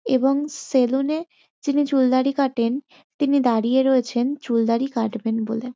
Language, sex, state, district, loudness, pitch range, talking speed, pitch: Bengali, female, West Bengal, North 24 Parganas, -21 LUFS, 235-275 Hz, 125 wpm, 260 Hz